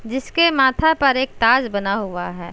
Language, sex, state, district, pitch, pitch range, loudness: Hindi, female, Uttar Pradesh, Jalaun, 255 Hz, 200-270 Hz, -18 LUFS